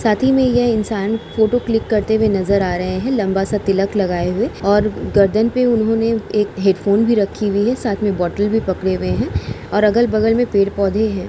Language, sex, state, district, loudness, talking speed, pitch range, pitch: Hindi, female, Uttar Pradesh, Jalaun, -17 LUFS, 215 wpm, 195-225 Hz, 210 Hz